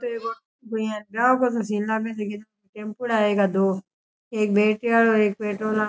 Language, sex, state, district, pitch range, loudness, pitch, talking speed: Rajasthani, male, Rajasthan, Churu, 210-230 Hz, -23 LUFS, 215 Hz, 100 wpm